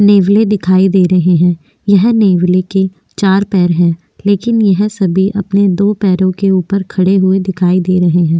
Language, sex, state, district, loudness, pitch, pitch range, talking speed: Hindi, female, Maharashtra, Aurangabad, -11 LUFS, 190 Hz, 180-200 Hz, 180 wpm